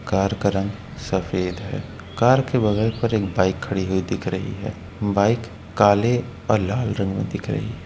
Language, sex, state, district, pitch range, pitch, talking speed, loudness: Hindi, male, Uttar Pradesh, Etah, 95-115 Hz, 100 Hz, 190 wpm, -22 LUFS